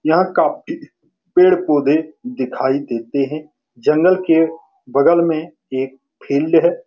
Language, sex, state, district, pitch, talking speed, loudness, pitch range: Hindi, male, Bihar, Saran, 150 Hz, 115 wpm, -17 LUFS, 140-165 Hz